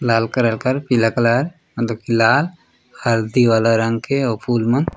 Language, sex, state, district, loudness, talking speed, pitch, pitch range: Chhattisgarhi, male, Chhattisgarh, Raigarh, -18 LUFS, 155 wpm, 115 Hz, 115-130 Hz